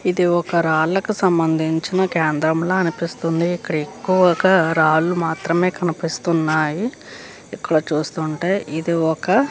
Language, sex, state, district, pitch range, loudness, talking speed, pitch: Telugu, female, Andhra Pradesh, Chittoor, 160-180 Hz, -19 LUFS, 100 wpm, 170 Hz